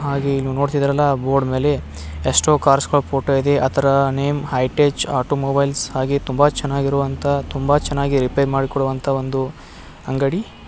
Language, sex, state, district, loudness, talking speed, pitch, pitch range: Kannada, male, Karnataka, Belgaum, -18 LUFS, 135 wpm, 140 Hz, 135-145 Hz